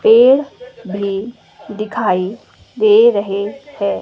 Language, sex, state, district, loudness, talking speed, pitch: Hindi, female, Himachal Pradesh, Shimla, -15 LUFS, 90 wpm, 215 Hz